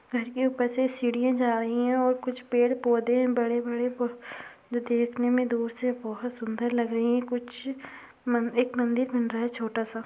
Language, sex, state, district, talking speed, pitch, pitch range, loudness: Hindi, female, Uttar Pradesh, Gorakhpur, 190 wpm, 245 Hz, 235-250 Hz, -27 LUFS